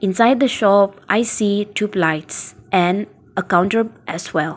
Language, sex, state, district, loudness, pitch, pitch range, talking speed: English, female, Nagaland, Dimapur, -18 LUFS, 200 Hz, 175-215 Hz, 145 wpm